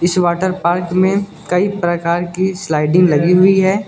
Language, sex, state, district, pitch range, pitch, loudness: Hindi, male, Uttar Pradesh, Lucknow, 175-190 Hz, 180 Hz, -15 LUFS